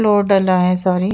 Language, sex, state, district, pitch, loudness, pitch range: Hindi, female, Uttar Pradesh, Jyotiba Phule Nagar, 190 Hz, -14 LUFS, 185-205 Hz